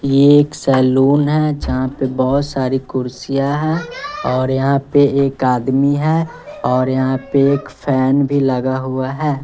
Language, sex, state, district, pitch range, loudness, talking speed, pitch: Hindi, male, Bihar, West Champaran, 130-145 Hz, -16 LUFS, 160 wpm, 135 Hz